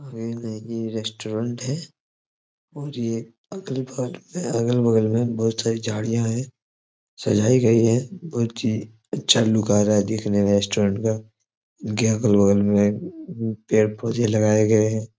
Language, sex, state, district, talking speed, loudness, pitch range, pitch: Hindi, male, Jharkhand, Jamtara, 150 wpm, -22 LUFS, 110-120 Hz, 115 Hz